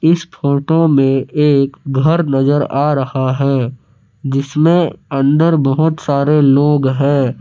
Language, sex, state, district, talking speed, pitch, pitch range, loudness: Hindi, male, Jharkhand, Palamu, 120 wpm, 140 Hz, 135-155 Hz, -14 LUFS